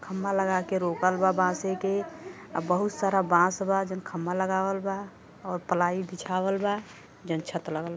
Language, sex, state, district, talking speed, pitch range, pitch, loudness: Bhojpuri, female, Uttar Pradesh, Gorakhpur, 180 wpm, 175-195 Hz, 185 Hz, -28 LUFS